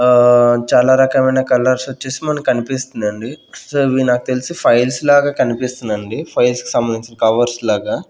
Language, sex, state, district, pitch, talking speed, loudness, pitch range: Telugu, male, Andhra Pradesh, Manyam, 125 Hz, 140 wpm, -15 LUFS, 120-130 Hz